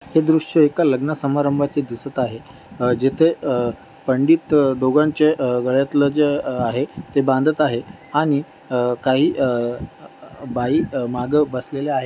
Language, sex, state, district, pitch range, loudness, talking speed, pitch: Marathi, male, Maharashtra, Dhule, 130-150 Hz, -19 LUFS, 135 wpm, 140 Hz